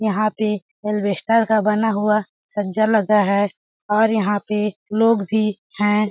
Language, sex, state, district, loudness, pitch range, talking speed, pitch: Hindi, female, Chhattisgarh, Balrampur, -19 LUFS, 205-215 Hz, 145 wpm, 210 Hz